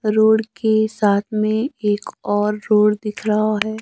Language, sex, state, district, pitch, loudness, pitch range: Hindi, male, Himachal Pradesh, Shimla, 215 Hz, -18 LUFS, 210-220 Hz